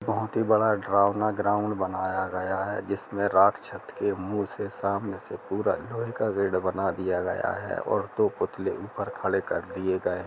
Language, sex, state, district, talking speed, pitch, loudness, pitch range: Hindi, male, Jharkhand, Jamtara, 185 wpm, 100 Hz, -27 LUFS, 95-105 Hz